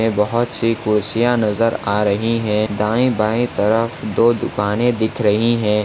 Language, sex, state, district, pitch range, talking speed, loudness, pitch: Hindi, male, Maharashtra, Dhule, 105-115 Hz, 165 wpm, -17 LUFS, 110 Hz